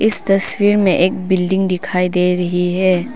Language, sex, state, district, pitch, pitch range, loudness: Hindi, female, Arunachal Pradesh, Papum Pare, 185 Hz, 180-195 Hz, -15 LUFS